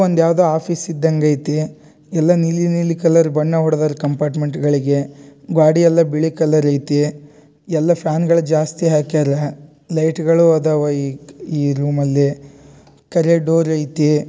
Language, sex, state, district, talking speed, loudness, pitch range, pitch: Kannada, male, Karnataka, Dharwad, 125 wpm, -16 LUFS, 145-165 Hz, 155 Hz